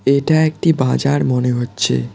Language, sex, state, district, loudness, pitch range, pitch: Bengali, male, West Bengal, Cooch Behar, -16 LUFS, 120-145 Hz, 130 Hz